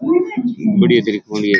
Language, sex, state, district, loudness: Rajasthani, male, Rajasthan, Churu, -16 LUFS